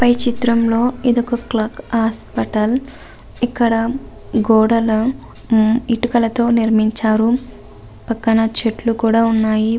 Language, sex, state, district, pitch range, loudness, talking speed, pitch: Telugu, female, Andhra Pradesh, Visakhapatnam, 225-240 Hz, -16 LUFS, 85 wpm, 230 Hz